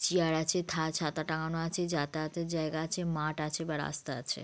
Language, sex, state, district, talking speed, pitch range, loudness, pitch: Bengali, female, West Bengal, Purulia, 190 wpm, 155-165 Hz, -33 LUFS, 160 Hz